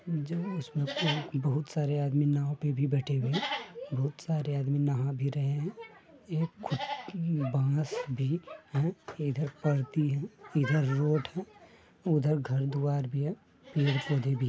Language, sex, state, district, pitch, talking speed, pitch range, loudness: Hindi, male, Bihar, Madhepura, 145 Hz, 145 wpm, 140-160 Hz, -31 LUFS